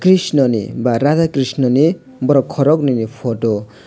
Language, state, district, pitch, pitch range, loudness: Kokborok, Tripura, West Tripura, 135 Hz, 120-150 Hz, -15 LUFS